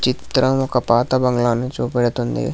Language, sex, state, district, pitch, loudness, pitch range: Telugu, male, Telangana, Hyderabad, 125 Hz, -18 LUFS, 120-130 Hz